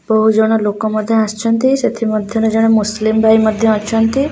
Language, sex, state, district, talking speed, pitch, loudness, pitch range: Odia, female, Odisha, Khordha, 165 wpm, 220 Hz, -14 LUFS, 215-225 Hz